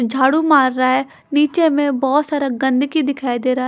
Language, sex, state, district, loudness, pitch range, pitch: Hindi, female, Haryana, Charkhi Dadri, -16 LUFS, 255-295 Hz, 275 Hz